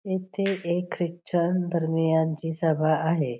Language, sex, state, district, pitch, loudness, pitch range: Marathi, female, Maharashtra, Pune, 170 Hz, -26 LUFS, 160-175 Hz